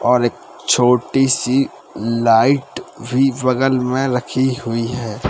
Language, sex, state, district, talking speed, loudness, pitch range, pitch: Hindi, male, Uttar Pradesh, Lalitpur, 125 wpm, -17 LUFS, 115-135 Hz, 125 Hz